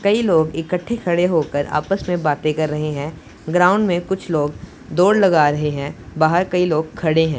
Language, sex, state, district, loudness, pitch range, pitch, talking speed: Hindi, male, Punjab, Pathankot, -18 LUFS, 150-180 Hz, 160 Hz, 195 wpm